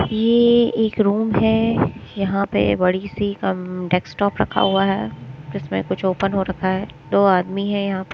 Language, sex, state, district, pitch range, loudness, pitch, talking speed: Hindi, female, Chandigarh, Chandigarh, 180-205 Hz, -19 LUFS, 195 Hz, 170 wpm